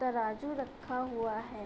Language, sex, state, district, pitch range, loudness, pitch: Hindi, female, Uttar Pradesh, Budaun, 220-255 Hz, -36 LUFS, 240 Hz